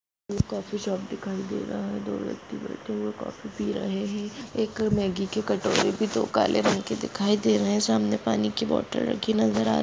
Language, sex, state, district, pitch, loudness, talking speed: Hindi, female, Maharashtra, Dhule, 190 Hz, -27 LUFS, 215 wpm